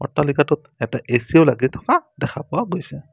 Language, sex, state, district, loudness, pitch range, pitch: Assamese, male, Assam, Sonitpur, -20 LUFS, 125-150 Hz, 140 Hz